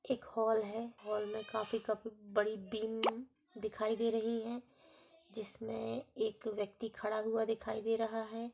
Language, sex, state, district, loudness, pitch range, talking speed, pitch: Hindi, female, Bihar, East Champaran, -38 LUFS, 215-230 Hz, 150 wpm, 225 Hz